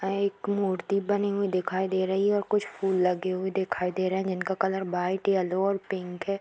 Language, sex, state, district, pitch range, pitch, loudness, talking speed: Hindi, female, Bihar, East Champaran, 185-200 Hz, 190 Hz, -28 LUFS, 235 wpm